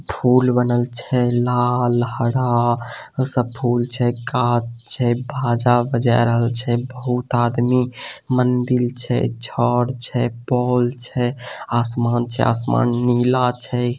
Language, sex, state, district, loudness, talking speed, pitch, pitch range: Maithili, male, Bihar, Samastipur, -19 LUFS, 115 wpm, 120 Hz, 120-125 Hz